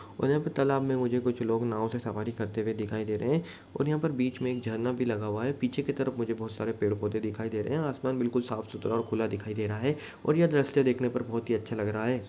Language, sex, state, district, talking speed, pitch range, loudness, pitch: Hindi, male, Bihar, Lakhisarai, 295 wpm, 110-130 Hz, -30 LUFS, 120 Hz